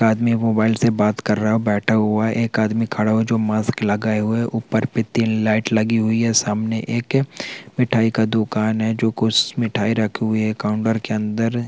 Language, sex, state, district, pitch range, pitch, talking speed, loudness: Hindi, male, Chhattisgarh, Balrampur, 110-115 Hz, 110 Hz, 220 wpm, -19 LUFS